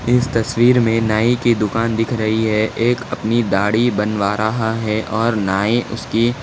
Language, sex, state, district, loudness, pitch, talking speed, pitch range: Hindi, male, Maharashtra, Nagpur, -17 LUFS, 115 Hz, 170 wpm, 110-120 Hz